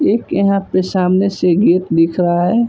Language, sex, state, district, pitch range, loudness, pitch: Hindi, male, Uttar Pradesh, Budaun, 175-195 Hz, -14 LUFS, 185 Hz